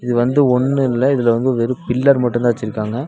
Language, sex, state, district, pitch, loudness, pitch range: Tamil, male, Tamil Nadu, Nilgiris, 125 Hz, -16 LUFS, 120-130 Hz